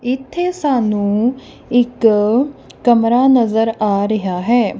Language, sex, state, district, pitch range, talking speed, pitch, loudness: Punjabi, female, Punjab, Kapurthala, 215-255 Hz, 100 wpm, 235 Hz, -15 LUFS